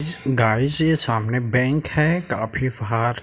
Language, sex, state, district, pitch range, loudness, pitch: Hindi, male, Bihar, Sitamarhi, 115-150 Hz, -21 LUFS, 125 Hz